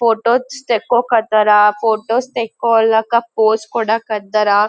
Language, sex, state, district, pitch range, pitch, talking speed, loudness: Kannada, female, Karnataka, Gulbarga, 215-235 Hz, 225 Hz, 115 wpm, -15 LUFS